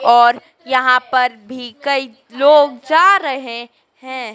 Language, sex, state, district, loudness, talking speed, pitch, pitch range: Hindi, female, Madhya Pradesh, Dhar, -14 LUFS, 125 wpm, 255 Hz, 240-280 Hz